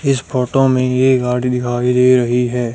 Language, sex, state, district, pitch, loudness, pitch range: Hindi, female, Haryana, Jhajjar, 125 Hz, -15 LUFS, 125-130 Hz